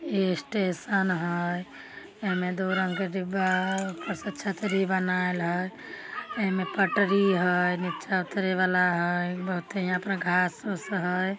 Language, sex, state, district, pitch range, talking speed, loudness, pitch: Maithili, female, Bihar, Samastipur, 180-195 Hz, 140 wpm, -27 LUFS, 185 Hz